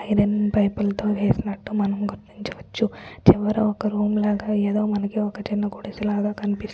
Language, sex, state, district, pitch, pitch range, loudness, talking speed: Telugu, female, Telangana, Nalgonda, 210 Hz, 205-210 Hz, -23 LUFS, 150 wpm